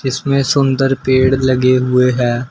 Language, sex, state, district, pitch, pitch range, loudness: Hindi, male, Uttar Pradesh, Shamli, 130 Hz, 125-135 Hz, -13 LUFS